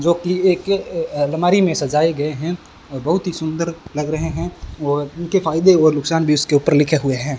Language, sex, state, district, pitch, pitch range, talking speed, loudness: Hindi, male, Rajasthan, Bikaner, 160 Hz, 145-175 Hz, 210 wpm, -18 LUFS